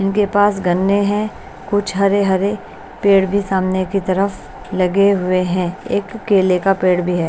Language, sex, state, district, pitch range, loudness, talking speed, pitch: Hindi, female, Bihar, West Champaran, 185-200 Hz, -17 LUFS, 165 wpm, 195 Hz